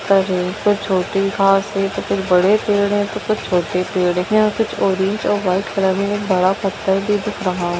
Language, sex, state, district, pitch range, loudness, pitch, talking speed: Hindi, female, Bihar, Darbhanga, 185-205 Hz, -18 LUFS, 195 Hz, 185 wpm